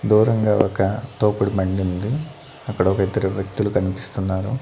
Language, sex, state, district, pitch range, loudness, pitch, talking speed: Telugu, male, Andhra Pradesh, Annamaya, 95-115 Hz, -21 LUFS, 100 Hz, 105 wpm